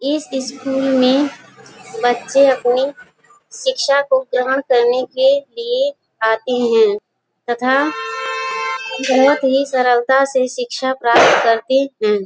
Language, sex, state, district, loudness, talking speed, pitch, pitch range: Hindi, female, Uttar Pradesh, Gorakhpur, -16 LUFS, 110 wpm, 260 Hz, 240-275 Hz